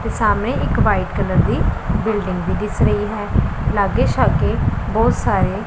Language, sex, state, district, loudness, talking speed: Punjabi, female, Punjab, Pathankot, -18 LUFS, 160 wpm